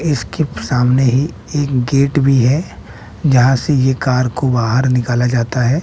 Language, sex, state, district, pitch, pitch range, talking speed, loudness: Hindi, male, Bihar, West Champaran, 130 Hz, 125-140 Hz, 165 wpm, -15 LUFS